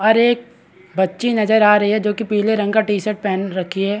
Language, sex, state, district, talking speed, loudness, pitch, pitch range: Hindi, male, Chhattisgarh, Bastar, 240 wpm, -17 LUFS, 210 Hz, 195-220 Hz